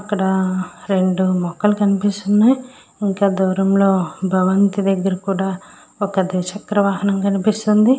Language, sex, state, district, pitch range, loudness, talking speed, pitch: Telugu, female, Andhra Pradesh, Srikakulam, 190-205 Hz, -18 LUFS, 105 wpm, 195 Hz